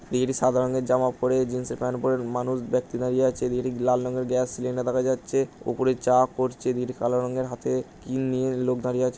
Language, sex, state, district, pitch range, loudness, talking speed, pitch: Bengali, male, West Bengal, Jhargram, 125-130 Hz, -25 LUFS, 205 wpm, 125 Hz